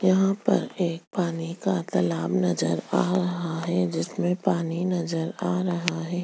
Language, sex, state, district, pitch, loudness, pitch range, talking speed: Hindi, female, Chhattisgarh, Jashpur, 170 Hz, -26 LUFS, 165-180 Hz, 155 wpm